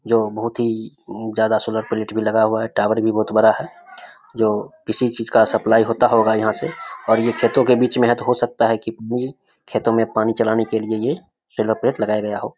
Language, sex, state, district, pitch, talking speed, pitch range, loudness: Hindi, male, Bihar, Samastipur, 110 Hz, 240 wpm, 110-115 Hz, -19 LUFS